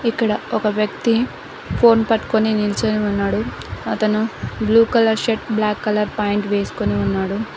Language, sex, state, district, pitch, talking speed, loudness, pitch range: Telugu, female, Telangana, Mahabubabad, 215 Hz, 125 wpm, -19 LUFS, 210-225 Hz